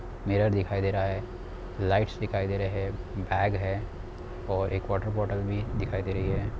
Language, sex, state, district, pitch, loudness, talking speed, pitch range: Hindi, male, Bihar, Sitamarhi, 95 Hz, -29 LUFS, 190 wpm, 95-100 Hz